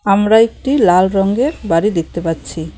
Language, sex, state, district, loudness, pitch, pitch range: Bengali, female, West Bengal, Cooch Behar, -14 LUFS, 195 Hz, 170-225 Hz